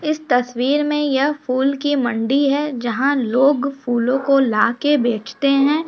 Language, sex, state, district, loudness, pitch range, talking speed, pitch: Hindi, female, Bihar, Samastipur, -18 LUFS, 245-290 Hz, 155 wpm, 275 Hz